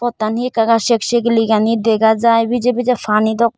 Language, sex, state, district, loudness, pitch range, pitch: Chakma, female, Tripura, Dhalai, -15 LUFS, 220-240 Hz, 230 Hz